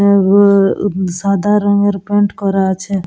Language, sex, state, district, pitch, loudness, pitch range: Bengali, female, West Bengal, Jalpaiguri, 200 Hz, -13 LUFS, 195-205 Hz